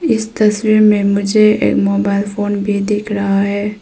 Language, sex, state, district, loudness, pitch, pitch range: Hindi, female, Arunachal Pradesh, Papum Pare, -14 LUFS, 205 Hz, 200-215 Hz